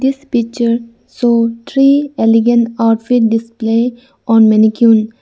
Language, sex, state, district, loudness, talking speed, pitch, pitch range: English, female, Arunachal Pradesh, Lower Dibang Valley, -12 LUFS, 105 wpm, 230 Hz, 225-245 Hz